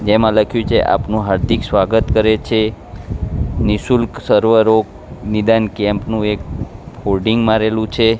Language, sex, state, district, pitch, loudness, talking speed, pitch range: Gujarati, male, Gujarat, Gandhinagar, 110 Hz, -15 LUFS, 130 wpm, 105-115 Hz